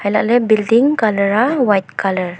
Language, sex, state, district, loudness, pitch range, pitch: Wancho, female, Arunachal Pradesh, Longding, -15 LUFS, 200-235 Hz, 215 Hz